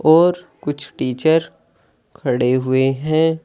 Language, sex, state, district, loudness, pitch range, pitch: Hindi, male, Uttar Pradesh, Saharanpur, -18 LUFS, 130-160 Hz, 150 Hz